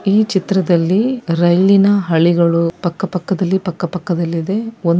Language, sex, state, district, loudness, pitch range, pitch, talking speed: Kannada, female, Karnataka, Dakshina Kannada, -15 LUFS, 170-195 Hz, 180 Hz, 130 wpm